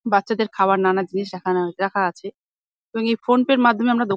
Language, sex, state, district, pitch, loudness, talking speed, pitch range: Bengali, female, West Bengal, Jalpaiguri, 200 Hz, -20 LUFS, 230 wpm, 190-235 Hz